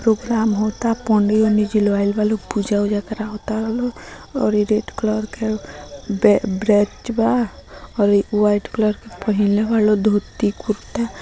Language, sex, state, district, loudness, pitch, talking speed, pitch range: Bhojpuri, female, Bihar, Gopalganj, -19 LUFS, 215 Hz, 145 wpm, 205-220 Hz